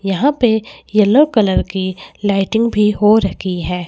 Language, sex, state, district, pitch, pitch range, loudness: Hindi, female, Chandigarh, Chandigarh, 210 Hz, 190-220 Hz, -15 LUFS